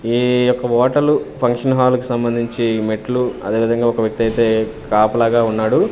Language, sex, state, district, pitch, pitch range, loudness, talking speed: Telugu, male, Andhra Pradesh, Manyam, 120 Hz, 110-125 Hz, -16 LUFS, 150 wpm